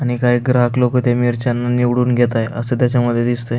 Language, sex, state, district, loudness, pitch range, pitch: Marathi, male, Maharashtra, Aurangabad, -16 LUFS, 120-125 Hz, 120 Hz